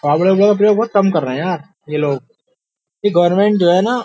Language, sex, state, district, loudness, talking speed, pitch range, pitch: Hindi, male, Uttar Pradesh, Jyotiba Phule Nagar, -15 LUFS, 235 wpm, 155-205 Hz, 190 Hz